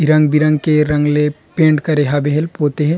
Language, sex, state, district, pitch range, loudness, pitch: Chhattisgarhi, male, Chhattisgarh, Rajnandgaon, 150-155 Hz, -14 LUFS, 150 Hz